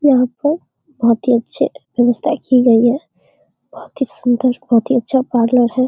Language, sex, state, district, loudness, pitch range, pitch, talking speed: Hindi, female, Bihar, Darbhanga, -15 LUFS, 240-275 Hz, 250 Hz, 175 wpm